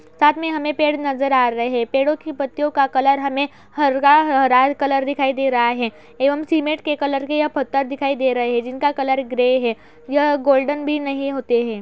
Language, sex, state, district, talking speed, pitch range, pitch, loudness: Hindi, female, Uttar Pradesh, Etah, 210 wpm, 255-290 Hz, 275 Hz, -19 LUFS